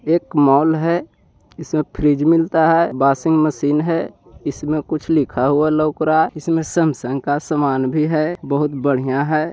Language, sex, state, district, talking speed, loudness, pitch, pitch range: Hindi, male, Bihar, Jahanabad, 175 wpm, -17 LUFS, 155 Hz, 145-160 Hz